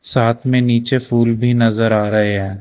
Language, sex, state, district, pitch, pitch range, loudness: Hindi, male, Karnataka, Bangalore, 115 Hz, 110-120 Hz, -15 LUFS